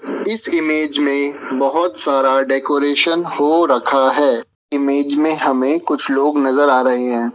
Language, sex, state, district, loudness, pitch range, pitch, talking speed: Hindi, male, Rajasthan, Jaipur, -15 LUFS, 135-155 Hz, 145 Hz, 145 wpm